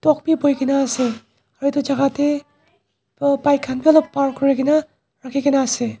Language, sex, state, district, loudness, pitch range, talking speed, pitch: Nagamese, male, Nagaland, Dimapur, -19 LUFS, 270-290 Hz, 200 wpm, 280 Hz